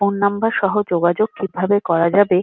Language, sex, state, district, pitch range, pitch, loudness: Bengali, female, West Bengal, Kolkata, 180-205 Hz, 200 Hz, -18 LUFS